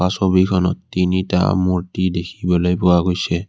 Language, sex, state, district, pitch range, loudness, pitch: Assamese, male, Assam, Kamrup Metropolitan, 90-95 Hz, -18 LUFS, 90 Hz